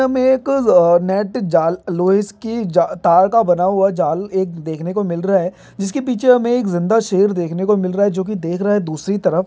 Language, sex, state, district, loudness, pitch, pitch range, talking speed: Hindi, male, Bihar, Saran, -16 LUFS, 195 Hz, 180-210 Hz, 235 wpm